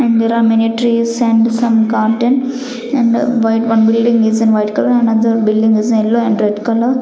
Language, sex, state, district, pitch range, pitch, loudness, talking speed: English, female, Chandigarh, Chandigarh, 225-235 Hz, 230 Hz, -13 LUFS, 205 wpm